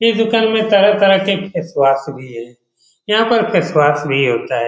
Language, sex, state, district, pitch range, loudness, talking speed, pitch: Hindi, male, Bihar, Saran, 135-220 Hz, -14 LUFS, 205 wpm, 180 Hz